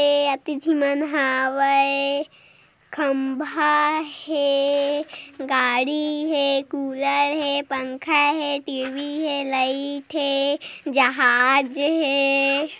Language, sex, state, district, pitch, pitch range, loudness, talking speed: Hindi, female, Chhattisgarh, Korba, 280 Hz, 275-295 Hz, -21 LUFS, 90 wpm